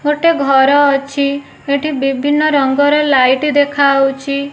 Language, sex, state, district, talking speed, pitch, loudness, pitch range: Odia, female, Odisha, Nuapada, 105 wpm, 280 Hz, -13 LUFS, 275-290 Hz